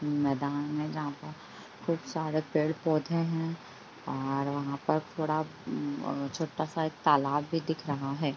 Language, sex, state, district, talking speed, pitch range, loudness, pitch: Hindi, female, Bihar, Bhagalpur, 105 wpm, 140-160 Hz, -32 LUFS, 150 Hz